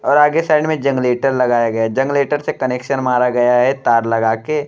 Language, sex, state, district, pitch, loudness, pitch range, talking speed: Bhojpuri, male, Uttar Pradesh, Deoria, 130 Hz, -15 LUFS, 120-145 Hz, 220 wpm